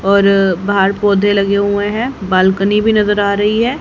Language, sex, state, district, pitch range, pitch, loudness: Hindi, female, Haryana, Charkhi Dadri, 195-210 Hz, 200 Hz, -13 LUFS